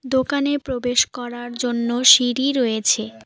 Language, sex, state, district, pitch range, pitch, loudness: Bengali, female, West Bengal, Alipurduar, 240-265 Hz, 245 Hz, -18 LUFS